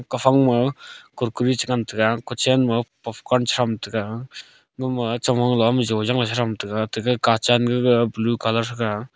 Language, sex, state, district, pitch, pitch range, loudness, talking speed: Wancho, male, Arunachal Pradesh, Longding, 120 Hz, 115-125 Hz, -21 LUFS, 135 wpm